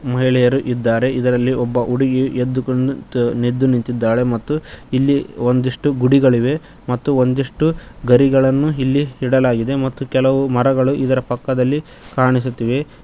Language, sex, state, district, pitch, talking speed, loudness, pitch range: Kannada, male, Karnataka, Koppal, 130 Hz, 100 wpm, -17 LUFS, 125-135 Hz